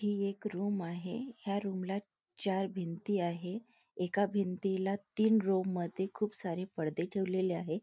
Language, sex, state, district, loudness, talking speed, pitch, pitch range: Marathi, female, Maharashtra, Nagpur, -35 LUFS, 155 wpm, 195 Hz, 180-200 Hz